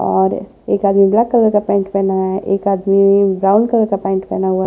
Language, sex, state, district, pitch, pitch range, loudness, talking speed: Hindi, male, Maharashtra, Washim, 195 Hz, 190-200 Hz, -14 LUFS, 220 wpm